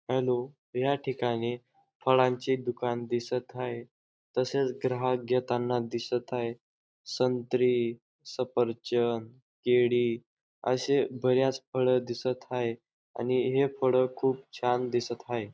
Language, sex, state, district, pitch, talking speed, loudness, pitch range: Marathi, male, Maharashtra, Dhule, 125 Hz, 105 wpm, -29 LUFS, 120-130 Hz